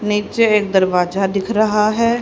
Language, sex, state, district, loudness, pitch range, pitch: Hindi, female, Haryana, Rohtak, -16 LUFS, 195-215 Hz, 210 Hz